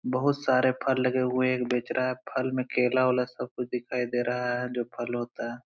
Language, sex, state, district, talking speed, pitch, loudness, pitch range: Hindi, male, Uttar Pradesh, Hamirpur, 255 wpm, 125 Hz, -28 LUFS, 125-130 Hz